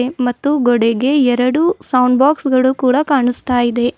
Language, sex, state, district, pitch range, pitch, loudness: Kannada, female, Karnataka, Bidar, 245-280 Hz, 255 Hz, -14 LUFS